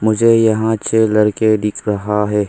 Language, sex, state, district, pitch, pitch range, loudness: Hindi, male, Arunachal Pradesh, Longding, 110 Hz, 105-110 Hz, -15 LUFS